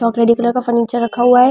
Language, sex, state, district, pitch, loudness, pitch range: Hindi, female, Delhi, New Delhi, 235 Hz, -14 LUFS, 235-245 Hz